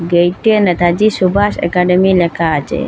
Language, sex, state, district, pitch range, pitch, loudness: Bengali, female, Assam, Hailakandi, 175-205 Hz, 180 Hz, -13 LUFS